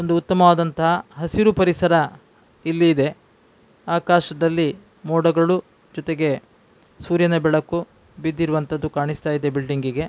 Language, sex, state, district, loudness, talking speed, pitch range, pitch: Kannada, male, Karnataka, Dakshina Kannada, -20 LUFS, 95 wpm, 155-170 Hz, 165 Hz